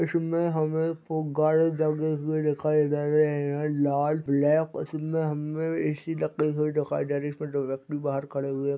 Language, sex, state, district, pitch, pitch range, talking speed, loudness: Hindi, male, Chhattisgarh, Sarguja, 150 Hz, 145-155 Hz, 185 wpm, -27 LUFS